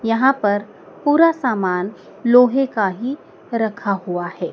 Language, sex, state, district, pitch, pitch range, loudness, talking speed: Hindi, female, Madhya Pradesh, Dhar, 220 Hz, 195-255 Hz, -18 LUFS, 130 wpm